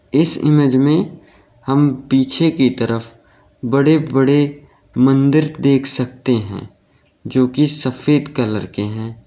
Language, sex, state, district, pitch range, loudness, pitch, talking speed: Hindi, male, Uttar Pradesh, Lalitpur, 115-145 Hz, -16 LUFS, 130 Hz, 125 wpm